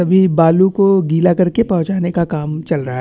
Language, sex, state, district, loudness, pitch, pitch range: Hindi, male, Chhattisgarh, Bastar, -14 LUFS, 175 Hz, 160-190 Hz